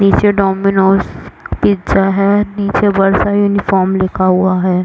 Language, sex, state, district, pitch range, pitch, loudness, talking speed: Hindi, female, Chhattisgarh, Raigarh, 185-200 Hz, 195 Hz, -12 LUFS, 135 wpm